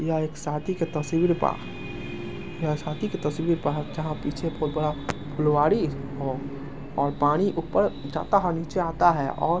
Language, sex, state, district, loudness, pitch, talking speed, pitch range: Angika, male, Bihar, Samastipur, -26 LUFS, 155 Hz, 160 wpm, 145-170 Hz